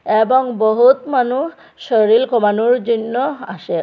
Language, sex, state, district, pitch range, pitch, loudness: Bengali, female, Assam, Hailakandi, 220-260 Hz, 240 Hz, -15 LUFS